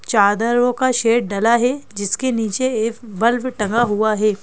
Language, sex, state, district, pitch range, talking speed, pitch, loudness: Hindi, female, Madhya Pradesh, Bhopal, 215-245 Hz, 165 wpm, 230 Hz, -18 LUFS